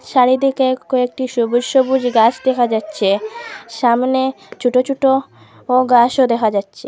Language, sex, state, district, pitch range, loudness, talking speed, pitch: Bengali, female, Assam, Hailakandi, 240-265 Hz, -16 LUFS, 120 wpm, 255 Hz